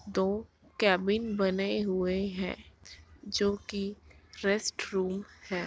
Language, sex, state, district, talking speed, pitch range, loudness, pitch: Hindi, female, Bihar, Jahanabad, 105 wpm, 185-205 Hz, -31 LUFS, 195 Hz